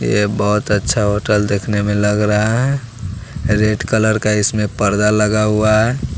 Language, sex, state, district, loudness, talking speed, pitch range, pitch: Hindi, male, Bihar, West Champaran, -15 LUFS, 165 wpm, 105-110 Hz, 105 Hz